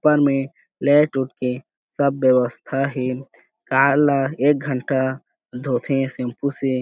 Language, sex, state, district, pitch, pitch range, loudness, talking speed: Chhattisgarhi, male, Chhattisgarh, Jashpur, 135 Hz, 130-140 Hz, -20 LUFS, 140 wpm